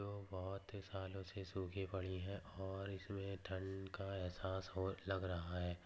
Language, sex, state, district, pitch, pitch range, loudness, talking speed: Hindi, male, Maharashtra, Pune, 95 Hz, 95-100 Hz, -47 LUFS, 175 wpm